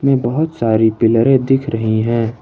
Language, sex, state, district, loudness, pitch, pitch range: Hindi, male, Jharkhand, Ranchi, -15 LUFS, 115 Hz, 115-135 Hz